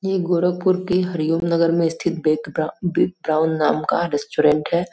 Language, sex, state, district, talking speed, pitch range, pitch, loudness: Hindi, female, Uttar Pradesh, Gorakhpur, 185 wpm, 155-180 Hz, 170 Hz, -20 LUFS